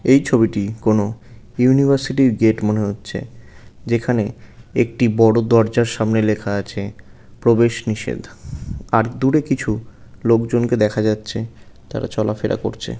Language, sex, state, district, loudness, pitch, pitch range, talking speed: Bengali, male, West Bengal, North 24 Parganas, -18 LUFS, 115 Hz, 110-120 Hz, 120 wpm